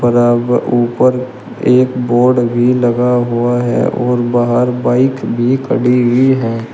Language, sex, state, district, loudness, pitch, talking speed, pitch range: Hindi, male, Uttar Pradesh, Shamli, -13 LUFS, 120 Hz, 135 wpm, 120-125 Hz